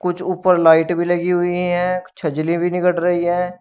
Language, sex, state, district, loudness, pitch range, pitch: Hindi, male, Uttar Pradesh, Shamli, -17 LUFS, 175-180 Hz, 175 Hz